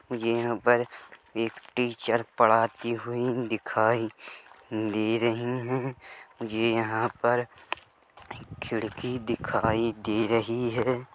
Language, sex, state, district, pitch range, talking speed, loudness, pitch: Hindi, male, Chhattisgarh, Rajnandgaon, 115-120 Hz, 95 wpm, -28 LUFS, 115 Hz